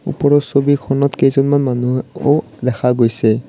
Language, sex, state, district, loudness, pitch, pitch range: Assamese, male, Assam, Kamrup Metropolitan, -15 LUFS, 135 Hz, 120-145 Hz